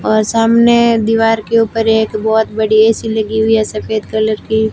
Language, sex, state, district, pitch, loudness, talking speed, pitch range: Hindi, female, Rajasthan, Barmer, 220 Hz, -13 LUFS, 190 wpm, 220-225 Hz